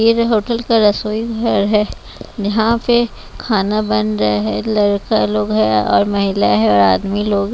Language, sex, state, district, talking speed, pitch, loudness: Hindi, female, Bihar, West Champaran, 185 wpm, 205 Hz, -15 LUFS